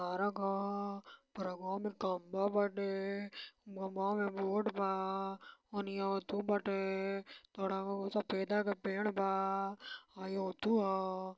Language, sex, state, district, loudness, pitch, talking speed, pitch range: Bhojpuri, male, Uttar Pradesh, Varanasi, -38 LUFS, 195 Hz, 120 wpm, 195-205 Hz